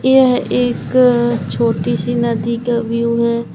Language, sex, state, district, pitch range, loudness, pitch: Hindi, female, Uttar Pradesh, Lalitpur, 235-250 Hz, -15 LUFS, 235 Hz